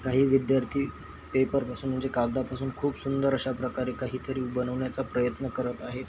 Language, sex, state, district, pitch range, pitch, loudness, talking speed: Marathi, male, Maharashtra, Chandrapur, 125-135 Hz, 130 Hz, -29 LUFS, 160 wpm